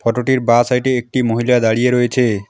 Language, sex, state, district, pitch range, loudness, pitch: Bengali, male, West Bengal, Alipurduar, 115-125 Hz, -15 LUFS, 125 Hz